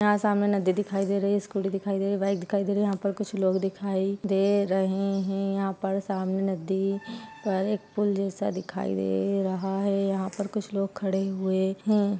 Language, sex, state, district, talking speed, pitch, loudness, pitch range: Hindi, female, Chhattisgarh, Rajnandgaon, 220 wpm, 195 Hz, -27 LUFS, 195-200 Hz